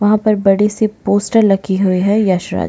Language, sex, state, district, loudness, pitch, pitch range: Hindi, female, Chhattisgarh, Bastar, -14 LUFS, 205 Hz, 195-215 Hz